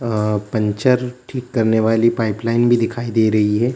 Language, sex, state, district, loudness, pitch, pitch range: Hindi, male, Bihar, Gaya, -17 LUFS, 115 Hz, 110-120 Hz